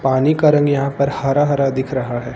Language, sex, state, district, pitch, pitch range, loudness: Hindi, male, Uttar Pradesh, Lucknow, 135 Hz, 130-145 Hz, -16 LUFS